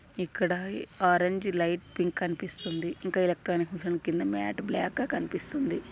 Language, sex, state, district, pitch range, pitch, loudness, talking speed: Telugu, female, Andhra Pradesh, Anantapur, 170-185 Hz, 175 Hz, -30 LUFS, 120 wpm